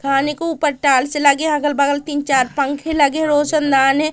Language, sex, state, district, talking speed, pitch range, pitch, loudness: Hindi, female, Madhya Pradesh, Katni, 215 wpm, 275-300 Hz, 290 Hz, -16 LUFS